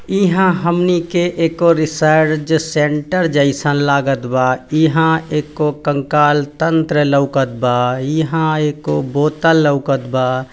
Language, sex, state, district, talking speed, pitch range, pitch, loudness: Hindi, male, Bihar, Gopalganj, 120 wpm, 140-160 Hz, 150 Hz, -15 LUFS